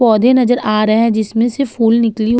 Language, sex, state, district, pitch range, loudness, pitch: Hindi, female, Uttar Pradesh, Jalaun, 220-245 Hz, -13 LUFS, 230 Hz